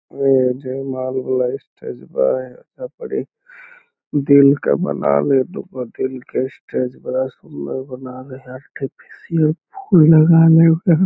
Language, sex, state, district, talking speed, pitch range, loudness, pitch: Magahi, male, Bihar, Lakhisarai, 135 wpm, 130-165 Hz, -17 LUFS, 140 Hz